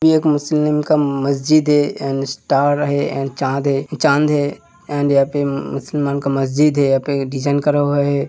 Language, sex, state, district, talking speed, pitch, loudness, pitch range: Hindi, male, Uttar Pradesh, Hamirpur, 195 wpm, 145 Hz, -17 LUFS, 140-150 Hz